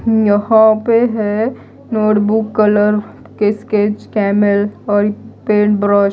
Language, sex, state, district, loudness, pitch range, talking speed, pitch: Hindi, female, Odisha, Malkangiri, -14 LUFS, 205-220 Hz, 110 wpm, 210 Hz